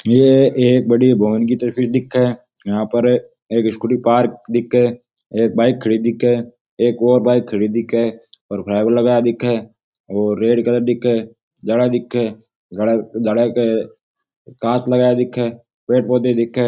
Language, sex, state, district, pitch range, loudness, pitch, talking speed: Rajasthani, male, Rajasthan, Nagaur, 115-125 Hz, -17 LUFS, 120 Hz, 140 wpm